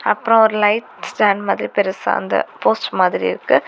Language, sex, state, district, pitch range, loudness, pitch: Tamil, female, Tamil Nadu, Kanyakumari, 200-220 Hz, -17 LUFS, 210 Hz